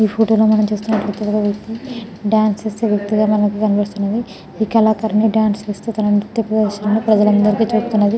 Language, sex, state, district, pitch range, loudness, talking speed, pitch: Telugu, female, Telangana, Nalgonda, 205-220 Hz, -16 LUFS, 155 wpm, 215 Hz